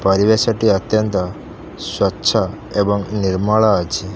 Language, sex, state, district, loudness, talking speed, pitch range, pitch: Odia, male, Odisha, Khordha, -17 LUFS, 85 wpm, 100-110 Hz, 105 Hz